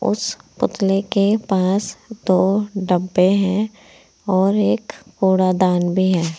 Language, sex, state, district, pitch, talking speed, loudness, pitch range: Hindi, female, Uttar Pradesh, Saharanpur, 195 Hz, 120 wpm, -18 LUFS, 185-210 Hz